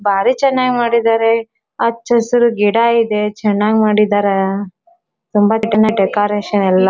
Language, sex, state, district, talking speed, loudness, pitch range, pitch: Kannada, female, Karnataka, Dharwad, 95 wpm, -14 LUFS, 205-235 Hz, 215 Hz